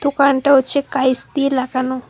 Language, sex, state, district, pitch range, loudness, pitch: Bengali, female, West Bengal, Alipurduar, 260-280 Hz, -17 LUFS, 275 Hz